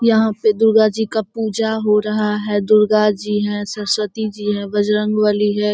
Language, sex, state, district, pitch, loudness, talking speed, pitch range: Hindi, female, Bihar, Sitamarhi, 210 Hz, -17 LUFS, 190 wpm, 210-220 Hz